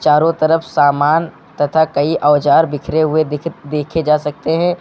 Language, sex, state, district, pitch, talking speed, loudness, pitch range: Hindi, male, Uttar Pradesh, Lucknow, 155 Hz, 160 wpm, -15 LUFS, 145-160 Hz